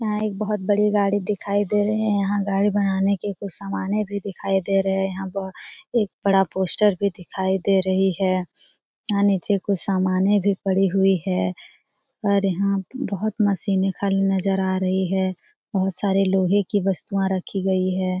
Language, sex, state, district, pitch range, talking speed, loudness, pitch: Hindi, female, Bihar, Jamui, 190-205 Hz, 180 wpm, -22 LUFS, 195 Hz